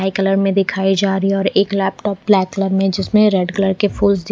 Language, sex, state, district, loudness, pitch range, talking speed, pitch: Hindi, female, Odisha, Khordha, -16 LUFS, 195-200 Hz, 265 wpm, 195 Hz